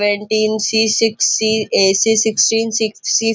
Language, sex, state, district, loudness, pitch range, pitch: Hindi, male, Maharashtra, Nagpur, -15 LUFS, 215-225 Hz, 220 Hz